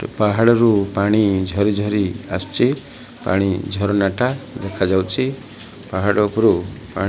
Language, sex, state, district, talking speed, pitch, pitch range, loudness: Odia, male, Odisha, Malkangiri, 120 wpm, 100 Hz, 95-110 Hz, -18 LUFS